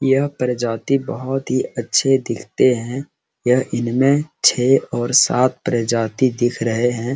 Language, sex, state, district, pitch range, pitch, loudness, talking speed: Hindi, male, Bihar, Araria, 120-135 Hz, 125 Hz, -18 LUFS, 135 wpm